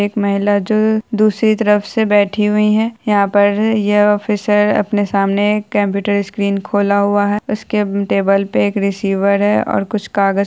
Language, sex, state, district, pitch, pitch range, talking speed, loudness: Hindi, female, Bihar, Saharsa, 205 Hz, 200-210 Hz, 170 wpm, -15 LUFS